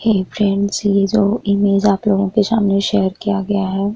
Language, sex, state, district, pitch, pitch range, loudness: Hindi, female, Bihar, Vaishali, 200 Hz, 195-205 Hz, -16 LUFS